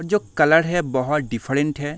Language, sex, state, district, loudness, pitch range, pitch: Hindi, male, Bihar, Sitamarhi, -20 LUFS, 140-165 Hz, 150 Hz